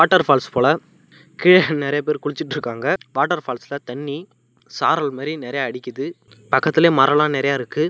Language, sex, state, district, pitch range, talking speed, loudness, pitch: Tamil, male, Tamil Nadu, Namakkal, 135-160 Hz, 145 wpm, -19 LUFS, 145 Hz